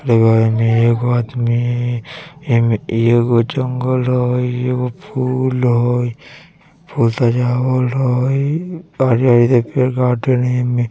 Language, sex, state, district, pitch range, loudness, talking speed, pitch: Bajjika, male, Bihar, Vaishali, 120-130 Hz, -16 LUFS, 80 wpm, 125 Hz